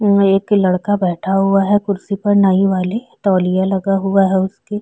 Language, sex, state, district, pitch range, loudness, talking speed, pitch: Hindi, female, Chhattisgarh, Korba, 190-200 Hz, -15 LUFS, 200 wpm, 195 Hz